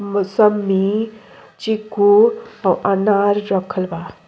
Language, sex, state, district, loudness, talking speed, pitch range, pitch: Bhojpuri, female, Uttar Pradesh, Deoria, -17 LUFS, 85 wpm, 195-215 Hz, 205 Hz